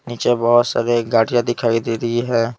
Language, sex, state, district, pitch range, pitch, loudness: Hindi, male, Bihar, Patna, 115-120 Hz, 120 Hz, -17 LUFS